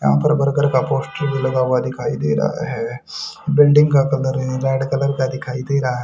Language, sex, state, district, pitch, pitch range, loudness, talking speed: Hindi, male, Haryana, Jhajjar, 135 Hz, 130-140 Hz, -18 LUFS, 210 wpm